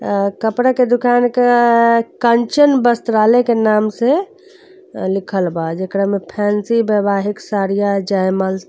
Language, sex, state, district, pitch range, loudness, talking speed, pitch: Bhojpuri, female, Uttar Pradesh, Deoria, 200-245 Hz, -15 LUFS, 140 wpm, 220 Hz